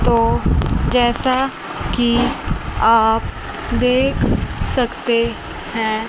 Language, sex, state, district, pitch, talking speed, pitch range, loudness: Hindi, female, Chandigarh, Chandigarh, 240 Hz, 70 wpm, 230-250 Hz, -18 LUFS